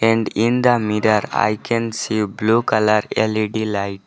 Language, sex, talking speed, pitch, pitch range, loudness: English, male, 160 wpm, 110 Hz, 105-115 Hz, -18 LUFS